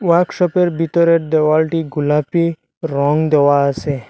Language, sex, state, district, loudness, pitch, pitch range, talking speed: Bengali, male, Assam, Hailakandi, -15 LUFS, 160 Hz, 145-170 Hz, 100 wpm